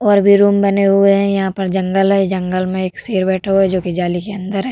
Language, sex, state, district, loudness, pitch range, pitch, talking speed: Hindi, female, Uttar Pradesh, Hamirpur, -15 LUFS, 185-200 Hz, 195 Hz, 290 wpm